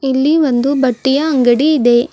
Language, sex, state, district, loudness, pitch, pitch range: Kannada, female, Karnataka, Bidar, -13 LUFS, 265 Hz, 245-290 Hz